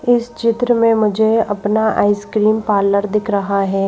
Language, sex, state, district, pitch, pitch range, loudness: Hindi, female, Madhya Pradesh, Bhopal, 215 Hz, 205-225 Hz, -16 LUFS